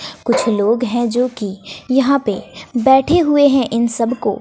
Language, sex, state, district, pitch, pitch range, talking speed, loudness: Hindi, female, Bihar, West Champaran, 240 Hz, 215-265 Hz, 175 wpm, -15 LUFS